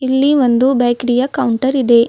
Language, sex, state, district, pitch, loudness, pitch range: Kannada, female, Karnataka, Bidar, 255 Hz, -14 LUFS, 245-265 Hz